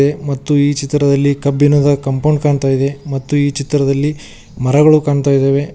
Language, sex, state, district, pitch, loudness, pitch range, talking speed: Kannada, male, Karnataka, Koppal, 145 Hz, -14 LUFS, 140-145 Hz, 135 wpm